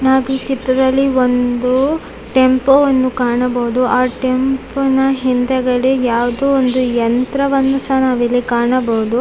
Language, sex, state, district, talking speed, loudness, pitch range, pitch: Kannada, female, Karnataka, Dakshina Kannada, 105 wpm, -14 LUFS, 245-265 Hz, 255 Hz